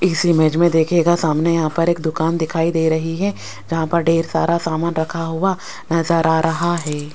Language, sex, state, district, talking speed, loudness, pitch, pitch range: Hindi, female, Rajasthan, Jaipur, 200 wpm, -18 LUFS, 165 Hz, 160-170 Hz